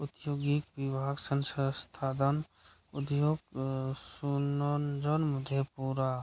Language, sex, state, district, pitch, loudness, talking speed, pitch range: Hindi, male, Bihar, Madhepura, 140 Hz, -33 LUFS, 85 wpm, 135-145 Hz